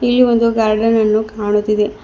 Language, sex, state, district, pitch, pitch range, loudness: Kannada, female, Karnataka, Bidar, 220 Hz, 210-230 Hz, -14 LUFS